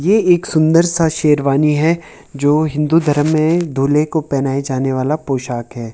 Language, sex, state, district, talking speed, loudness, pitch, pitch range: Hindi, male, Himachal Pradesh, Shimla, 170 wpm, -15 LUFS, 150 Hz, 135-160 Hz